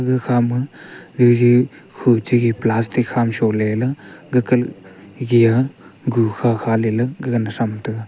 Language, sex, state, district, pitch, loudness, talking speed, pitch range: Wancho, male, Arunachal Pradesh, Longding, 120 Hz, -18 LUFS, 110 wpm, 115-125 Hz